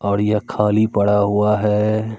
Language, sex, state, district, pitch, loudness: Hindi, male, Bihar, Katihar, 105 Hz, -17 LUFS